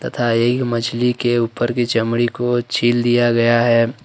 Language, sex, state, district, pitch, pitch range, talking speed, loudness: Hindi, male, Jharkhand, Ranchi, 120 Hz, 115-120 Hz, 175 wpm, -17 LUFS